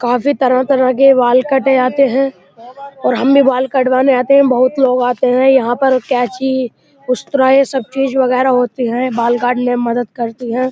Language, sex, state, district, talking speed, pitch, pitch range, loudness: Hindi, male, Uttar Pradesh, Muzaffarnagar, 195 wpm, 255 Hz, 245-270 Hz, -13 LUFS